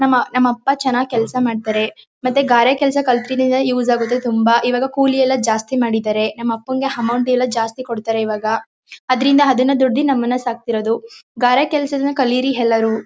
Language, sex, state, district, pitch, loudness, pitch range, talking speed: Kannada, female, Karnataka, Mysore, 250 Hz, -17 LUFS, 230-260 Hz, 160 wpm